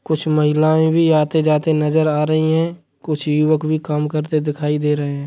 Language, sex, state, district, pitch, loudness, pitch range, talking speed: Hindi, male, Bihar, Sitamarhi, 155 Hz, -17 LUFS, 150-155 Hz, 205 wpm